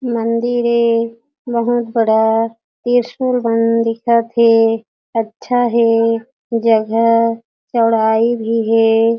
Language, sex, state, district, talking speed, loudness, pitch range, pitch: Chhattisgarhi, female, Chhattisgarh, Jashpur, 90 wpm, -15 LUFS, 225-235 Hz, 230 Hz